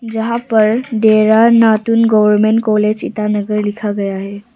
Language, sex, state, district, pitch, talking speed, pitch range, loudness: Hindi, female, Arunachal Pradesh, Papum Pare, 215 Hz, 130 wpm, 210-225 Hz, -13 LUFS